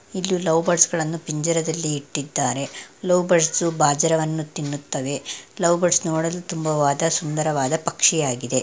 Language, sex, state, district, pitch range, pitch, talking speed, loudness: Kannada, female, Karnataka, Dakshina Kannada, 150-170 Hz, 160 Hz, 105 wpm, -21 LUFS